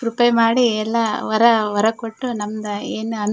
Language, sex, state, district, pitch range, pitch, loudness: Kannada, female, Karnataka, Shimoga, 215-235 Hz, 225 Hz, -19 LUFS